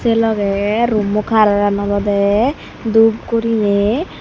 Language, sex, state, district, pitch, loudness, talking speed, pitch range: Chakma, female, Tripura, Unakoti, 215 Hz, -15 LUFS, 100 wpm, 205-225 Hz